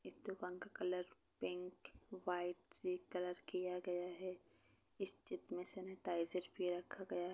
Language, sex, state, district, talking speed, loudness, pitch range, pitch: Hindi, female, Chhattisgarh, Bastar, 145 wpm, -46 LUFS, 180-185 Hz, 180 Hz